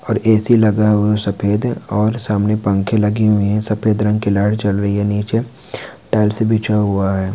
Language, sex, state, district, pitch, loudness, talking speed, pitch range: Hindi, male, Uttar Pradesh, Varanasi, 105 Hz, -16 LUFS, 195 wpm, 100-110 Hz